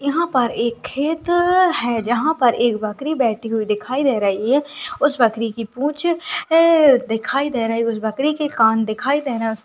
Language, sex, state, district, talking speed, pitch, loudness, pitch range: Hindi, female, Uttarakhand, Uttarkashi, 200 wpm, 255 Hz, -18 LUFS, 225-300 Hz